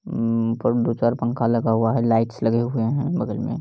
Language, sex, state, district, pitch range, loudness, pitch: Hindi, male, Bihar, Lakhisarai, 115-120 Hz, -22 LUFS, 115 Hz